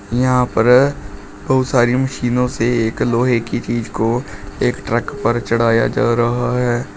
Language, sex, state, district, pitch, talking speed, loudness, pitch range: Hindi, male, Uttar Pradesh, Shamli, 120 Hz, 155 wpm, -17 LUFS, 115-125 Hz